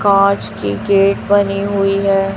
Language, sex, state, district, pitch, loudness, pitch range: Hindi, female, Chhattisgarh, Raipur, 195 Hz, -15 LUFS, 195-200 Hz